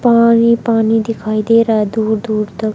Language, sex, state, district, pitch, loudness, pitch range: Hindi, female, Haryana, Charkhi Dadri, 225 Hz, -13 LUFS, 215-230 Hz